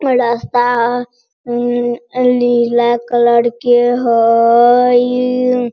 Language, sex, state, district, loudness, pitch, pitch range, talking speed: Hindi, female, Bihar, Sitamarhi, -13 LUFS, 240 Hz, 240-245 Hz, 85 wpm